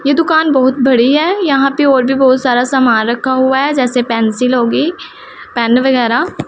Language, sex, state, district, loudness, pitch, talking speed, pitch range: Hindi, female, Punjab, Pathankot, -12 LUFS, 260 Hz, 185 wpm, 245-285 Hz